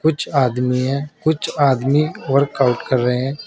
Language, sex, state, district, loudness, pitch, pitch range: Hindi, male, Uttar Pradesh, Saharanpur, -18 LUFS, 140 Hz, 130-150 Hz